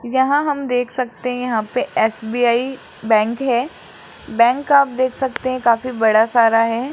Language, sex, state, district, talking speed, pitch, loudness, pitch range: Hindi, male, Rajasthan, Jaipur, 165 wpm, 245 Hz, -17 LUFS, 230-260 Hz